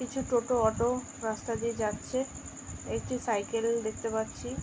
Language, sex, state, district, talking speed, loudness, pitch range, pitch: Bengali, female, West Bengal, Dakshin Dinajpur, 145 wpm, -32 LUFS, 220-250 Hz, 230 Hz